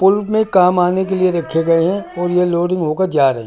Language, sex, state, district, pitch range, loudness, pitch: Hindi, male, Delhi, New Delhi, 165-190 Hz, -15 LUFS, 180 Hz